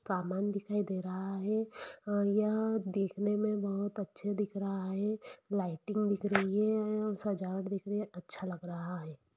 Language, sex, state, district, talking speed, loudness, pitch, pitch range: Hindi, female, Jharkhand, Jamtara, 155 wpm, -35 LUFS, 200 Hz, 190-210 Hz